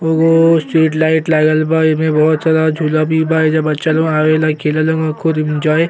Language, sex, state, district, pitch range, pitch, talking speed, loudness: Bhojpuri, male, Uttar Pradesh, Gorakhpur, 155-160 Hz, 155 Hz, 185 wpm, -13 LUFS